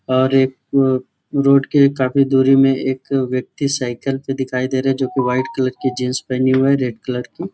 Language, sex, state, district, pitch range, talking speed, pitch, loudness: Hindi, male, Jharkhand, Sahebganj, 130-135 Hz, 225 wpm, 130 Hz, -17 LUFS